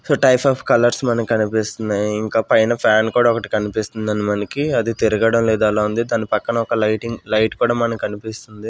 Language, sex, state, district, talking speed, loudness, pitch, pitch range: Telugu, male, Andhra Pradesh, Sri Satya Sai, 180 wpm, -18 LUFS, 110 Hz, 110-115 Hz